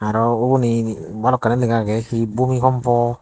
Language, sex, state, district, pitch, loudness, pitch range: Chakma, male, Tripura, Dhalai, 120 Hz, -18 LUFS, 115-125 Hz